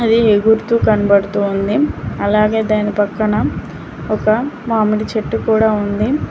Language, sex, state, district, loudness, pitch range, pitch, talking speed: Telugu, female, Telangana, Mahabubabad, -15 LUFS, 205-220 Hz, 215 Hz, 115 wpm